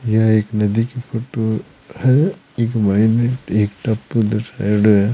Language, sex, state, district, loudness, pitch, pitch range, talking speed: Hindi, male, Rajasthan, Churu, -18 LUFS, 110 Hz, 105-120 Hz, 140 wpm